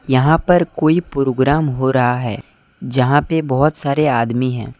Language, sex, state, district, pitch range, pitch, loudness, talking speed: Hindi, male, Jharkhand, Deoghar, 125-155 Hz, 135 Hz, -16 LUFS, 165 wpm